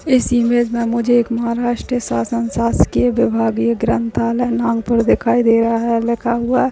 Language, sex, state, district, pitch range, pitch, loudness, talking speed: Hindi, male, Maharashtra, Nagpur, 230-240 Hz, 235 Hz, -16 LUFS, 150 wpm